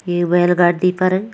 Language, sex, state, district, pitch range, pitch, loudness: Kumaoni, female, Uttarakhand, Tehri Garhwal, 175-185 Hz, 180 Hz, -15 LUFS